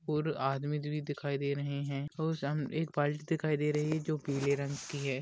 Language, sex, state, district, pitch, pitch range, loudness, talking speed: Hindi, male, Maharashtra, Dhule, 145 Hz, 140-150 Hz, -34 LUFS, 205 wpm